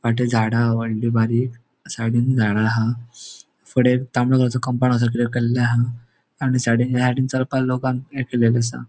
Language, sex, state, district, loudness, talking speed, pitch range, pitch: Konkani, male, Goa, North and South Goa, -20 LUFS, 160 wpm, 115-125 Hz, 120 Hz